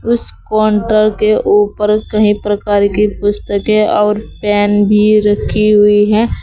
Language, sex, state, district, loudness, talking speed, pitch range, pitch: Hindi, female, Uttar Pradesh, Saharanpur, -12 LUFS, 130 wpm, 205-215 Hz, 210 Hz